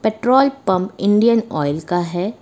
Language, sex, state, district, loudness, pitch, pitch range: Hindi, female, Uttar Pradesh, Lucknow, -17 LUFS, 205 Hz, 175-235 Hz